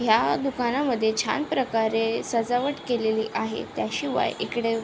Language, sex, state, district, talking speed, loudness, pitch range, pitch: Marathi, female, Maharashtra, Aurangabad, 110 wpm, -25 LUFS, 225-255 Hz, 230 Hz